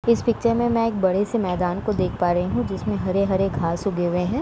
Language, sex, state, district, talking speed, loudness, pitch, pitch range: Hindi, female, Uttar Pradesh, Etah, 260 wpm, -22 LUFS, 195 Hz, 180-230 Hz